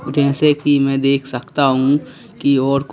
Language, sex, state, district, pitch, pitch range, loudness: Hindi, male, Madhya Pradesh, Bhopal, 140 Hz, 135-145 Hz, -16 LUFS